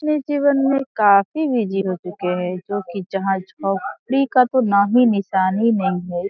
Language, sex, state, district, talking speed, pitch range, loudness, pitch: Hindi, female, Bihar, Araria, 180 wpm, 190-260 Hz, -19 LUFS, 200 Hz